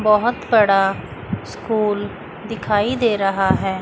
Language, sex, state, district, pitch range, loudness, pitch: Hindi, female, Chandigarh, Chandigarh, 195-225 Hz, -19 LUFS, 210 Hz